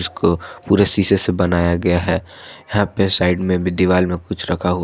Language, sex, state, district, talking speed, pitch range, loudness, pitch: Hindi, male, Jharkhand, Ranchi, 210 wpm, 90-95 Hz, -17 LUFS, 90 Hz